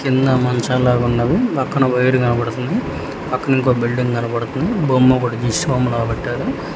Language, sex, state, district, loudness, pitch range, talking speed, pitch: Telugu, male, Telangana, Hyderabad, -17 LUFS, 120-130 Hz, 135 wpm, 125 Hz